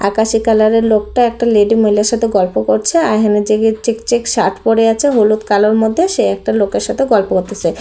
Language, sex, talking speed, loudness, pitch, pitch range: Bengali, female, 205 wpm, -13 LUFS, 220 Hz, 210-230 Hz